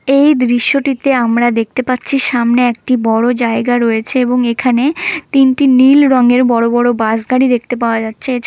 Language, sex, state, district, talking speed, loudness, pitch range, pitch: Bengali, female, West Bengal, Malda, 165 wpm, -12 LUFS, 235-265 Hz, 245 Hz